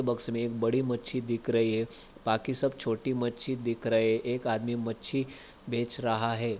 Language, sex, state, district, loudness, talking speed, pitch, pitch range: Hindi, male, Maharashtra, Aurangabad, -29 LUFS, 180 wpm, 120 Hz, 115-125 Hz